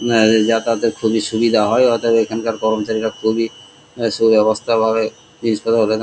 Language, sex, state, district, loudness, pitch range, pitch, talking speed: Bengali, male, West Bengal, Kolkata, -17 LUFS, 110-115 Hz, 110 Hz, 140 wpm